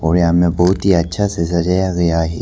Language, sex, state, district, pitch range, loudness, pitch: Hindi, male, Arunachal Pradesh, Papum Pare, 85-90 Hz, -15 LUFS, 85 Hz